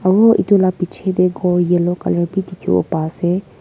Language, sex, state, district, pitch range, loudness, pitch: Nagamese, female, Nagaland, Kohima, 175-190 Hz, -16 LUFS, 180 Hz